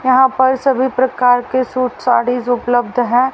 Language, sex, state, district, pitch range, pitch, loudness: Hindi, female, Haryana, Rohtak, 245-260 Hz, 250 Hz, -15 LUFS